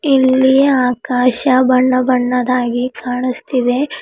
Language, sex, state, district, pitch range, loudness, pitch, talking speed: Kannada, female, Karnataka, Bidar, 250-260 Hz, -14 LUFS, 255 Hz, 75 wpm